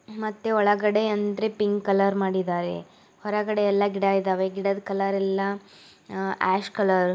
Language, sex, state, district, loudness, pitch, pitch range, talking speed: Kannada, female, Karnataka, Gulbarga, -24 LUFS, 200 Hz, 195-210 Hz, 145 wpm